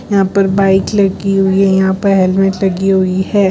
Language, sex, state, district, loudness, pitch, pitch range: Hindi, female, Gujarat, Valsad, -12 LUFS, 195 Hz, 190-195 Hz